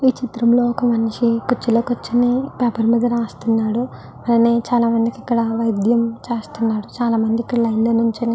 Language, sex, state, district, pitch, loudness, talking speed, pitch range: Telugu, female, Andhra Pradesh, Guntur, 235 Hz, -18 LUFS, 120 wpm, 230-240 Hz